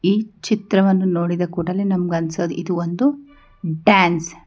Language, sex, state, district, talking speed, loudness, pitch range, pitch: Kannada, female, Karnataka, Bangalore, 135 wpm, -19 LUFS, 170-200 Hz, 180 Hz